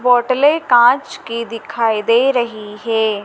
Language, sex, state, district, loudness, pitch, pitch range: Hindi, female, Madhya Pradesh, Dhar, -15 LUFS, 235 Hz, 220-250 Hz